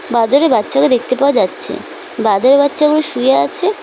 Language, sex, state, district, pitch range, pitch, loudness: Bengali, female, West Bengal, Cooch Behar, 245-300 Hz, 275 Hz, -13 LUFS